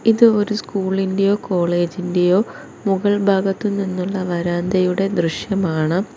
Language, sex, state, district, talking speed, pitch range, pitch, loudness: Malayalam, female, Kerala, Kollam, 80 wpm, 180-200 Hz, 190 Hz, -19 LUFS